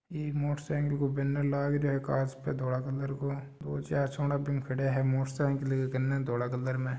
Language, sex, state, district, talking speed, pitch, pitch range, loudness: Marwari, male, Rajasthan, Nagaur, 215 wpm, 140 Hz, 130-140 Hz, -32 LUFS